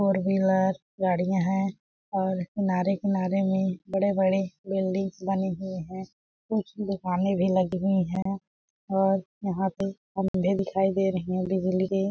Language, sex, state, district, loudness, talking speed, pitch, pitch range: Hindi, female, Chhattisgarh, Balrampur, -27 LUFS, 140 wpm, 190 Hz, 185-195 Hz